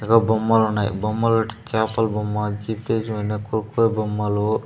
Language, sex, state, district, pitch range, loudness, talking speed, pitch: Telugu, male, Andhra Pradesh, Sri Satya Sai, 105-110 Hz, -22 LUFS, 105 wpm, 110 Hz